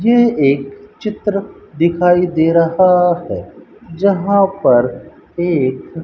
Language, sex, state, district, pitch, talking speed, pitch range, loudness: Hindi, male, Rajasthan, Bikaner, 175 Hz, 110 wpm, 160-200 Hz, -15 LUFS